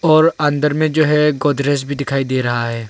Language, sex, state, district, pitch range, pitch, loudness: Hindi, male, Arunachal Pradesh, Longding, 135-150 Hz, 145 Hz, -16 LUFS